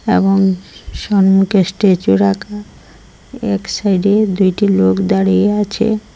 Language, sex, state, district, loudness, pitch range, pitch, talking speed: Bengali, female, Assam, Hailakandi, -14 LUFS, 190-205 Hz, 195 Hz, 115 wpm